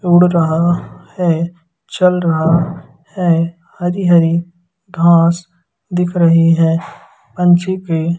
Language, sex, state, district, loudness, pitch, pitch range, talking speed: Hindi, male, Madhya Pradesh, Umaria, -14 LUFS, 170 Hz, 165-175 Hz, 105 wpm